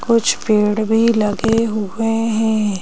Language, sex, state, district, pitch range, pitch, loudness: Hindi, female, Madhya Pradesh, Bhopal, 210-225 Hz, 220 Hz, -17 LUFS